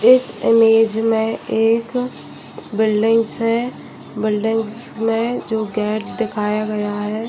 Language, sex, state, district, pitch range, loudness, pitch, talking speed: Hindi, female, Chhattisgarh, Bilaspur, 215-230 Hz, -18 LUFS, 225 Hz, 105 wpm